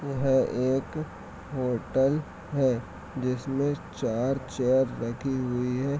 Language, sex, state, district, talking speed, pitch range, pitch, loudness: Hindi, male, Jharkhand, Sahebganj, 130 wpm, 125-135 Hz, 130 Hz, -28 LUFS